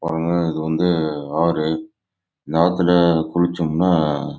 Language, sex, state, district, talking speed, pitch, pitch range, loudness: Tamil, male, Karnataka, Chamarajanagar, 80 wpm, 85 Hz, 80-90 Hz, -19 LUFS